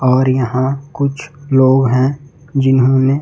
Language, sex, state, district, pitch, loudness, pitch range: Hindi, male, Chhattisgarh, Raipur, 135 Hz, -14 LUFS, 130-140 Hz